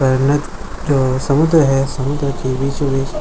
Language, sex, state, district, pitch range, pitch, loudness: Hindi, male, Jharkhand, Jamtara, 135-145 Hz, 140 Hz, -16 LUFS